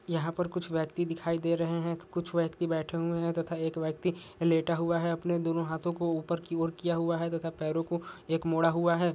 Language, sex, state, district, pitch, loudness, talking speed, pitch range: Hindi, male, Jharkhand, Jamtara, 170 Hz, -31 LUFS, 235 wpm, 165-170 Hz